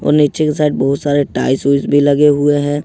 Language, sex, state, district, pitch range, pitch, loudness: Hindi, male, Jharkhand, Ranchi, 140-150 Hz, 145 Hz, -13 LUFS